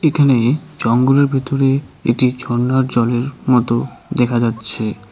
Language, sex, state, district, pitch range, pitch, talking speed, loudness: Bengali, male, West Bengal, Cooch Behar, 120-135 Hz, 125 Hz, 105 wpm, -16 LUFS